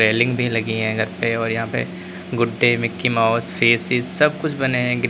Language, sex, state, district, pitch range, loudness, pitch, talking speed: Hindi, male, Uttar Pradesh, Lalitpur, 110-125 Hz, -19 LUFS, 115 Hz, 225 wpm